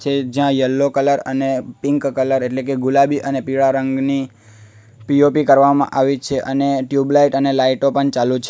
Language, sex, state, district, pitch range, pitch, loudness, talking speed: Gujarati, male, Gujarat, Valsad, 130-140 Hz, 135 Hz, -16 LUFS, 175 wpm